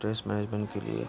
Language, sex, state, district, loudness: Hindi, male, Uttar Pradesh, Varanasi, -32 LUFS